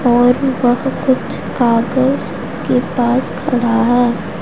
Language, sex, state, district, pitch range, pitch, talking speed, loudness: Hindi, female, Punjab, Pathankot, 240-260 Hz, 245 Hz, 110 wpm, -15 LUFS